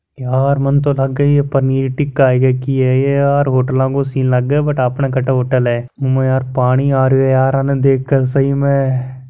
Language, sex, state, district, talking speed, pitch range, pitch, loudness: Hindi, male, Rajasthan, Churu, 215 wpm, 130-140 Hz, 135 Hz, -14 LUFS